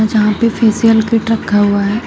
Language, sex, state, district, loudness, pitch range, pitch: Hindi, female, Uttar Pradesh, Shamli, -12 LUFS, 210-225 Hz, 220 Hz